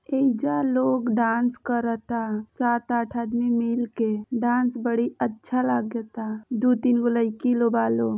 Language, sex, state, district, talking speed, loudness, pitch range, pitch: Bhojpuri, female, Uttar Pradesh, Gorakhpur, 140 wpm, -24 LUFS, 225-245 Hz, 235 Hz